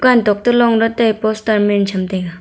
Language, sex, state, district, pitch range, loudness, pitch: Wancho, female, Arunachal Pradesh, Longding, 200-230 Hz, -15 LUFS, 215 Hz